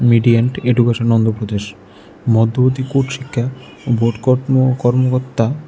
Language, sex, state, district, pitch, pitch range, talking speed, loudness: Bengali, male, Tripura, West Tripura, 120 Hz, 115-130 Hz, 95 wpm, -16 LUFS